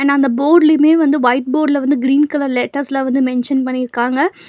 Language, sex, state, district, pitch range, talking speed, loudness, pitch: Tamil, female, Tamil Nadu, Nilgiris, 260-295 Hz, 175 wpm, -14 LUFS, 275 Hz